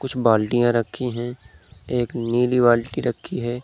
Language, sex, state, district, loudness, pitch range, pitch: Hindi, male, Bihar, Begusarai, -21 LUFS, 115-125 Hz, 120 Hz